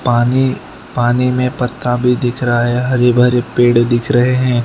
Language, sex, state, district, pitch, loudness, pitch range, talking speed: Hindi, male, Gujarat, Valsad, 125 Hz, -14 LUFS, 120-125 Hz, 180 wpm